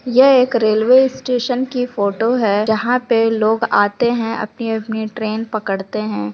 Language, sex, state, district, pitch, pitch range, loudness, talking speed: Hindi, female, Chhattisgarh, Sukma, 225 Hz, 215-250 Hz, -16 LUFS, 150 wpm